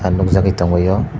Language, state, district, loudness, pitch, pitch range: Kokborok, Tripura, Dhalai, -15 LUFS, 95 Hz, 90-95 Hz